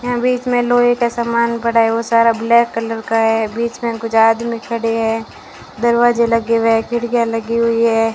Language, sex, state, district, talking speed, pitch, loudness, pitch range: Hindi, female, Rajasthan, Bikaner, 205 wpm, 230 Hz, -15 LUFS, 225-235 Hz